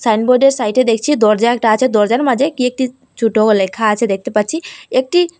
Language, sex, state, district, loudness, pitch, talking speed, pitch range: Bengali, female, Assam, Hailakandi, -14 LUFS, 240 Hz, 180 wpm, 215-260 Hz